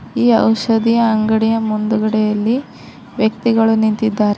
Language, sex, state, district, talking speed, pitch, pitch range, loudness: Kannada, female, Karnataka, Koppal, 80 wpm, 220 Hz, 215-230 Hz, -15 LUFS